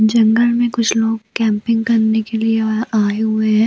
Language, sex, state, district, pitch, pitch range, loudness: Hindi, female, Chhattisgarh, Bastar, 220 Hz, 220-230 Hz, -16 LUFS